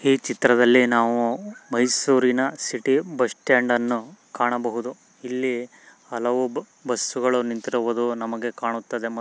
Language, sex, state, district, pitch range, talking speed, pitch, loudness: Kannada, male, Karnataka, Mysore, 120-125 Hz, 90 wpm, 120 Hz, -22 LUFS